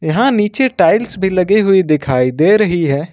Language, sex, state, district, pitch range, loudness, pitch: Hindi, male, Jharkhand, Ranchi, 155-210 Hz, -13 LUFS, 190 Hz